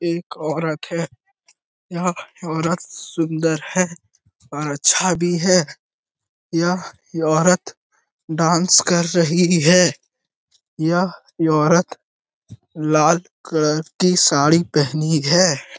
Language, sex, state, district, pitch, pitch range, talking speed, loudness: Hindi, male, Bihar, Jamui, 170 Hz, 155-180 Hz, 90 wpm, -18 LUFS